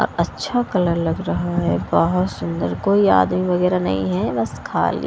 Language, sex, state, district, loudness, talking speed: Hindi, female, Punjab, Kapurthala, -19 LUFS, 180 wpm